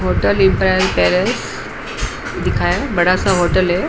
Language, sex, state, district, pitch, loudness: Hindi, female, Maharashtra, Mumbai Suburban, 100 Hz, -16 LUFS